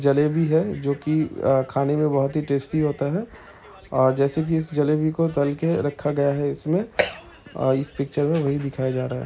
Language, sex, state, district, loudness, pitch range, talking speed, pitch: Hindi, male, Bihar, Saran, -23 LUFS, 140-155 Hz, 205 wpm, 145 Hz